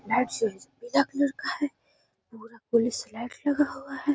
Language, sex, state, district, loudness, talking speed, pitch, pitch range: Hindi, male, Bihar, Gaya, -28 LUFS, 145 wpm, 255 Hz, 230-285 Hz